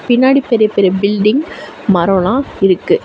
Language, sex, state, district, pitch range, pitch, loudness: Tamil, female, Tamil Nadu, Chennai, 195-265 Hz, 215 Hz, -13 LUFS